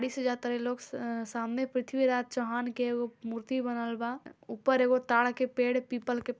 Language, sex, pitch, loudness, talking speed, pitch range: Bhojpuri, female, 245 Hz, -31 LUFS, 215 wpm, 240-255 Hz